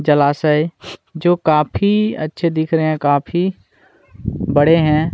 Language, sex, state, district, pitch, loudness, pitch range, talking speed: Hindi, male, Chhattisgarh, Kabirdham, 155 Hz, -16 LUFS, 150-170 Hz, 140 wpm